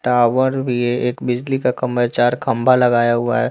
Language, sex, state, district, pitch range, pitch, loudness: Hindi, male, Bihar, West Champaran, 120-125 Hz, 125 Hz, -17 LUFS